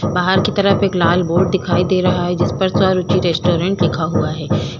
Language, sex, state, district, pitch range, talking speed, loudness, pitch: Hindi, female, Uttar Pradesh, Budaun, 170-185 Hz, 210 wpm, -16 LUFS, 180 Hz